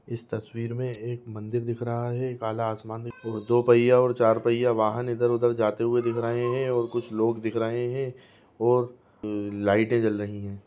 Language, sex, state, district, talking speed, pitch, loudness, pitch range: Hindi, male, Chhattisgarh, Raigarh, 195 wpm, 120 Hz, -26 LUFS, 110-120 Hz